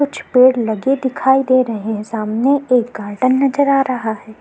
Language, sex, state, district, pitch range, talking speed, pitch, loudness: Hindi, female, Uttar Pradesh, Jyotiba Phule Nagar, 220-265 Hz, 190 wpm, 255 Hz, -16 LUFS